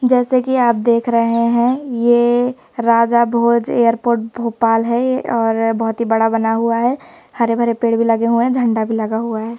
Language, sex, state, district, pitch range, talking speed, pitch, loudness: Hindi, female, Madhya Pradesh, Bhopal, 230-240 Hz, 195 wpm, 235 Hz, -16 LUFS